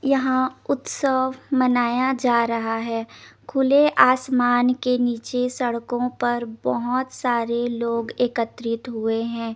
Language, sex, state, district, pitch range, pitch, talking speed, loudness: Hindi, female, Chandigarh, Chandigarh, 235-255 Hz, 245 Hz, 115 wpm, -22 LUFS